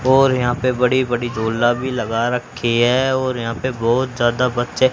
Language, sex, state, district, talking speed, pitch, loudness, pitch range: Hindi, male, Haryana, Charkhi Dadri, 195 wpm, 125 Hz, -18 LUFS, 120-130 Hz